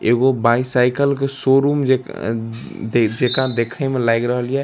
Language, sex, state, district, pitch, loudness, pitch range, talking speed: Maithili, male, Bihar, Darbhanga, 125 Hz, -18 LUFS, 115-135 Hz, 130 wpm